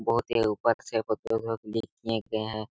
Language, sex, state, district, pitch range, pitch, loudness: Hindi, male, Bihar, Araria, 110-115 Hz, 110 Hz, -29 LUFS